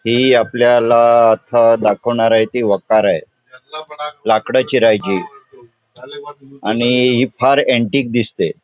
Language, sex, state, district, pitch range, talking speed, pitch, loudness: Marathi, male, Goa, North and South Goa, 115-140 Hz, 105 wpm, 125 Hz, -14 LUFS